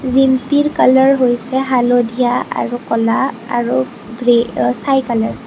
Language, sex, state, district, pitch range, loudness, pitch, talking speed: Assamese, female, Assam, Kamrup Metropolitan, 235-265 Hz, -15 LUFS, 245 Hz, 130 wpm